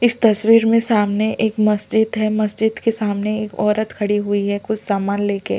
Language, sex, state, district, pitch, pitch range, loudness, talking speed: Hindi, male, Delhi, New Delhi, 215 Hz, 205-220 Hz, -18 LUFS, 180 wpm